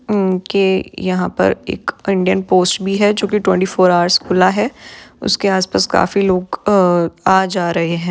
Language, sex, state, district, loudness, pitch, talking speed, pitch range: Hindi, female, Maharashtra, Aurangabad, -15 LUFS, 190 Hz, 185 wpm, 185-200 Hz